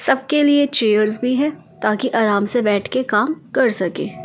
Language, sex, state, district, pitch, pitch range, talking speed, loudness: Hindi, female, Delhi, New Delhi, 245 Hz, 210-285 Hz, 185 wpm, -18 LUFS